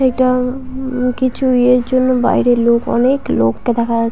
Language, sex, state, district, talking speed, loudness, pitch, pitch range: Bengali, female, West Bengal, Paschim Medinipur, 160 wpm, -15 LUFS, 250 Hz, 240-255 Hz